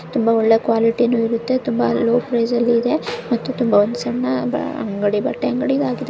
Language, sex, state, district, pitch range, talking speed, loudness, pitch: Kannada, female, Karnataka, Chamarajanagar, 225-255 Hz, 185 wpm, -18 LUFS, 235 Hz